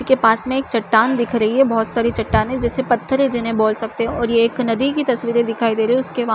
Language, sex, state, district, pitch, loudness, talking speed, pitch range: Chhattisgarhi, female, Chhattisgarh, Jashpur, 235 Hz, -17 LUFS, 275 wpm, 225-260 Hz